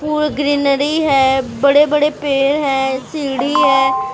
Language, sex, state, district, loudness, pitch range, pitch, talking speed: Hindi, female, Maharashtra, Mumbai Suburban, -15 LUFS, 265-295 Hz, 280 Hz, 190 wpm